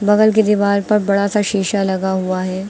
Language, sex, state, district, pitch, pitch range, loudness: Hindi, female, Uttar Pradesh, Lucknow, 200 Hz, 190-210 Hz, -16 LUFS